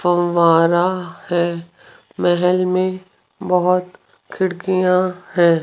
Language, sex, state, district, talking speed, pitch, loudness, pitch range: Hindi, female, Rajasthan, Jaipur, 75 wpm, 180 Hz, -17 LUFS, 175-185 Hz